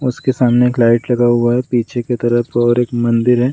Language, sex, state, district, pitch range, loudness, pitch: Hindi, male, Bihar, Gaya, 120-125 Hz, -14 LUFS, 120 Hz